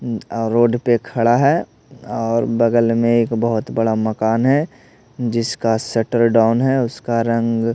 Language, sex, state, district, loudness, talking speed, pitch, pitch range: Hindi, male, Odisha, Malkangiri, -17 LUFS, 145 wpm, 115 Hz, 115-120 Hz